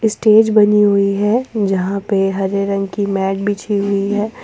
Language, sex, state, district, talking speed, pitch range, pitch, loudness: Hindi, female, Jharkhand, Ranchi, 175 wpm, 195-210 Hz, 200 Hz, -15 LUFS